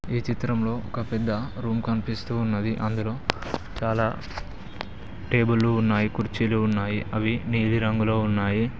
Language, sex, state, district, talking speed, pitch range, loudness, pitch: Telugu, male, Telangana, Mahabubabad, 115 wpm, 105-115 Hz, -25 LUFS, 110 Hz